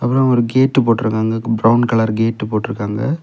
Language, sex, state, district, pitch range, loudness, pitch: Tamil, male, Tamil Nadu, Kanyakumari, 110-125 Hz, -16 LUFS, 115 Hz